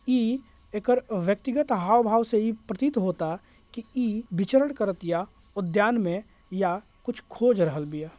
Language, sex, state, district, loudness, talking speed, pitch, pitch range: Bhojpuri, male, Bihar, Gopalganj, -26 LUFS, 145 wpm, 215 Hz, 185-240 Hz